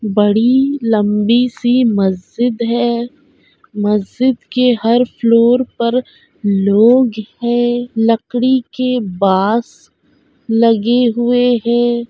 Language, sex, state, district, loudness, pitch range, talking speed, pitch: Hindi, female, Bihar, Araria, -14 LUFS, 220-245 Hz, 85 wpm, 235 Hz